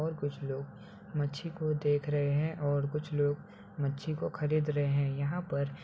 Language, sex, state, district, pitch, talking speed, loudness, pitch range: Hindi, male, Uttar Pradesh, Ghazipur, 145 Hz, 195 wpm, -33 LUFS, 140-155 Hz